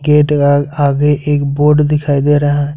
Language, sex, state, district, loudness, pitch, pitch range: Hindi, male, Jharkhand, Ranchi, -12 LUFS, 145 Hz, 145-150 Hz